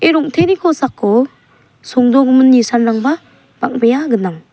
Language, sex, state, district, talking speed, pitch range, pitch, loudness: Garo, female, Meghalaya, South Garo Hills, 95 wpm, 235-295 Hz, 255 Hz, -13 LUFS